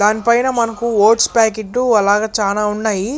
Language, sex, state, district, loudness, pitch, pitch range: Telugu, male, Andhra Pradesh, Chittoor, -15 LUFS, 220 Hz, 210-235 Hz